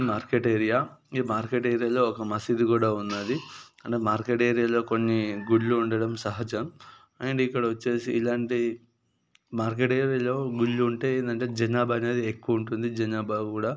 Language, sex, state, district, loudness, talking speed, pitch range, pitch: Telugu, male, Telangana, Nalgonda, -27 LUFS, 150 wpm, 110-120 Hz, 115 Hz